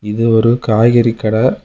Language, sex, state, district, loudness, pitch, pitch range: Tamil, male, Tamil Nadu, Kanyakumari, -12 LUFS, 115 Hz, 110-120 Hz